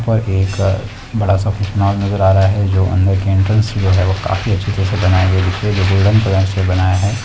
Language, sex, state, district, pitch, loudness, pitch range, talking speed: Hindi, male, Chhattisgarh, Kabirdham, 95 Hz, -15 LUFS, 95-105 Hz, 250 wpm